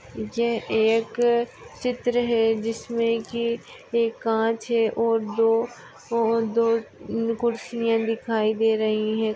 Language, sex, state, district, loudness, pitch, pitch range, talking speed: Hindi, female, Maharashtra, Aurangabad, -24 LUFS, 230 Hz, 225-235 Hz, 120 wpm